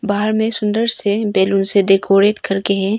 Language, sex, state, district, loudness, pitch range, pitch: Hindi, female, Arunachal Pradesh, Longding, -15 LUFS, 195-215 Hz, 205 Hz